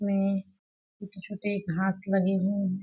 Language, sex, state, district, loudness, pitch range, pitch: Hindi, female, Chhattisgarh, Balrampur, -29 LUFS, 190-200 Hz, 195 Hz